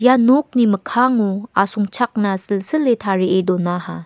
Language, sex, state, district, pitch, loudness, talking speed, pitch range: Garo, female, Meghalaya, West Garo Hills, 205 Hz, -17 LUFS, 90 wpm, 190-245 Hz